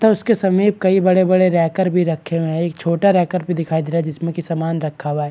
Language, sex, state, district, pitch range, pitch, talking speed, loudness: Hindi, male, Bihar, Araria, 165-185 Hz, 170 Hz, 225 wpm, -17 LUFS